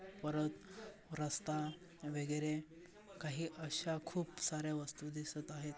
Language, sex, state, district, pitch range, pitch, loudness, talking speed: Marathi, male, Maharashtra, Dhule, 150-170 Hz, 155 Hz, -43 LUFS, 105 wpm